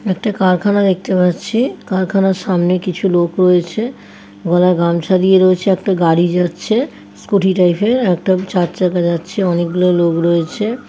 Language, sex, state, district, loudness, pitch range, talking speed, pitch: Bengali, female, West Bengal, Paschim Medinipur, -14 LUFS, 175-195 Hz, 140 wpm, 185 Hz